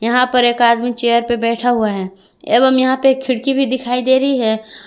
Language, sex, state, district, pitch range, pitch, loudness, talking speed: Hindi, female, Jharkhand, Garhwa, 230-260 Hz, 245 Hz, -15 LUFS, 235 wpm